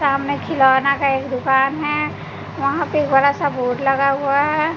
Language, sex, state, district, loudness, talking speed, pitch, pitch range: Hindi, female, Bihar, West Champaran, -18 LUFS, 190 wpm, 275 Hz, 270-295 Hz